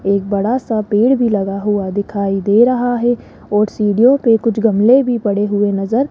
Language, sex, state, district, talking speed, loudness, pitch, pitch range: Hindi, female, Rajasthan, Jaipur, 205 wpm, -15 LUFS, 215 Hz, 200-240 Hz